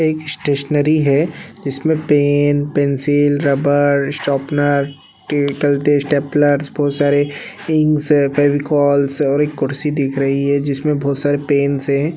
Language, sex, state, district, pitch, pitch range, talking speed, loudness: Hindi, male, Bihar, Bhagalpur, 145 Hz, 140-145 Hz, 120 wpm, -16 LUFS